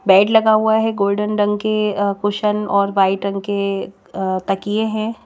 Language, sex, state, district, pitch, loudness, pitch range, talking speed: Hindi, female, Madhya Pradesh, Bhopal, 205 Hz, -18 LUFS, 200-215 Hz, 170 wpm